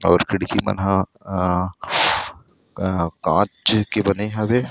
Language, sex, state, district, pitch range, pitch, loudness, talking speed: Chhattisgarhi, male, Chhattisgarh, Rajnandgaon, 95-105 Hz, 100 Hz, -20 LUFS, 115 wpm